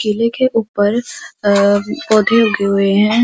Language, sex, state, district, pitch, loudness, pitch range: Hindi, female, Uttar Pradesh, Muzaffarnagar, 215 Hz, -14 LUFS, 205-235 Hz